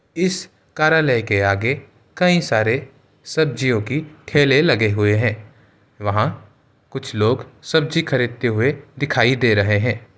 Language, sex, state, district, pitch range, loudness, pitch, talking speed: Hindi, male, Bihar, Gaya, 110-145 Hz, -19 LUFS, 130 Hz, 135 wpm